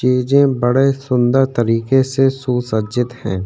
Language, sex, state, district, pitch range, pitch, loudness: Hindi, male, Chhattisgarh, Sukma, 120-135 Hz, 125 Hz, -16 LUFS